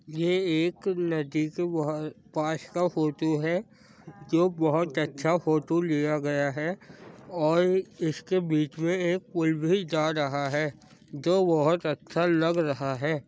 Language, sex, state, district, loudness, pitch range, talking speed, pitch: Hindi, male, Uttar Pradesh, Jyotiba Phule Nagar, -27 LUFS, 155-175 Hz, 145 wpm, 160 Hz